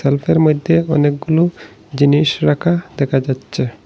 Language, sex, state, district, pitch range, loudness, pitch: Bengali, male, Assam, Hailakandi, 140-165 Hz, -15 LUFS, 145 Hz